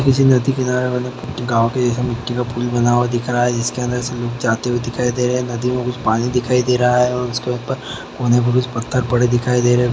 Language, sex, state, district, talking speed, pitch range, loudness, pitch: Maithili, male, Bihar, Araria, 260 wpm, 120-125 Hz, -18 LUFS, 125 Hz